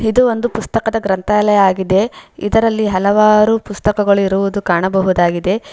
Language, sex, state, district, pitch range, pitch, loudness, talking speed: Kannada, female, Karnataka, Bangalore, 190-220 Hz, 210 Hz, -14 LUFS, 95 wpm